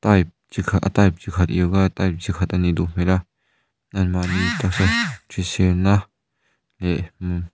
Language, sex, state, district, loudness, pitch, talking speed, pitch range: Mizo, male, Mizoram, Aizawl, -21 LUFS, 90 Hz, 145 wpm, 90-95 Hz